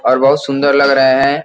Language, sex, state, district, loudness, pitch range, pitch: Hindi, male, Uttar Pradesh, Gorakhpur, -11 LUFS, 135-140 Hz, 140 Hz